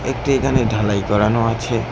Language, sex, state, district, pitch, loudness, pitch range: Bengali, female, West Bengal, Cooch Behar, 115 Hz, -18 LUFS, 105-130 Hz